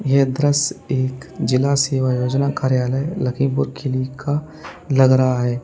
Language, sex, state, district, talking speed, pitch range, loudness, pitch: Hindi, male, Uttar Pradesh, Lalitpur, 125 wpm, 130-140 Hz, -19 LUFS, 135 Hz